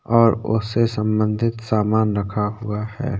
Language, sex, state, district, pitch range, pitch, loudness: Hindi, male, Uttarakhand, Tehri Garhwal, 105-115 Hz, 110 Hz, -20 LUFS